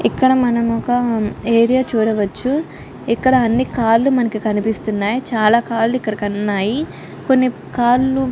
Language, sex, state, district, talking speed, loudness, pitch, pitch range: Telugu, female, Andhra Pradesh, Chittoor, 115 wpm, -17 LUFS, 235 Hz, 220-255 Hz